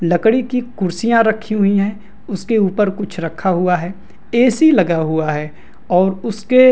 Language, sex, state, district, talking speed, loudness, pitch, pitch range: Hindi, male, Bihar, Madhepura, 170 wpm, -16 LUFS, 200 Hz, 180-225 Hz